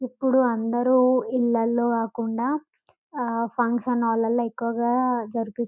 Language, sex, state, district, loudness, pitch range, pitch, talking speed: Telugu, female, Telangana, Karimnagar, -23 LUFS, 230-250 Hz, 240 Hz, 95 wpm